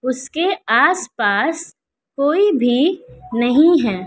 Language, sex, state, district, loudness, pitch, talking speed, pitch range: Hindi, female, Bihar, West Champaran, -16 LUFS, 295 Hz, 105 wpm, 245-340 Hz